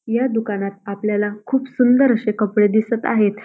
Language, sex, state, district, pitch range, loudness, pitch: Marathi, female, Maharashtra, Dhule, 205-240 Hz, -18 LUFS, 215 Hz